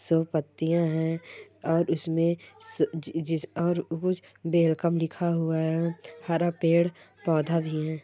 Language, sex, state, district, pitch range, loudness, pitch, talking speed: Hindi, male, Chhattisgarh, Sukma, 160-170 Hz, -27 LUFS, 165 Hz, 135 wpm